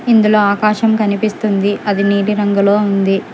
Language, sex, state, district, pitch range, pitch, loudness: Telugu, male, Telangana, Hyderabad, 200-215 Hz, 205 Hz, -14 LUFS